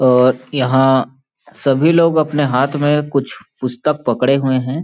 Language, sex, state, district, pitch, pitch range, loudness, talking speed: Hindi, male, Chhattisgarh, Balrampur, 135 Hz, 130-150 Hz, -15 LUFS, 160 wpm